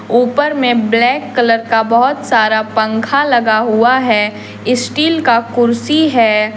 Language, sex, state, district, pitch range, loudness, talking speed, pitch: Hindi, female, Jharkhand, Deoghar, 225-260 Hz, -12 LUFS, 135 wpm, 235 Hz